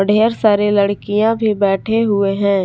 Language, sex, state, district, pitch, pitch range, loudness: Hindi, female, Jharkhand, Palamu, 205 Hz, 200-220 Hz, -15 LUFS